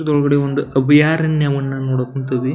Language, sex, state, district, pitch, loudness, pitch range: Kannada, male, Karnataka, Belgaum, 140 Hz, -16 LUFS, 135-150 Hz